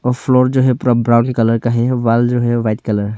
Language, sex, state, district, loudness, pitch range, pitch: Hindi, male, Arunachal Pradesh, Longding, -14 LUFS, 115-125 Hz, 120 Hz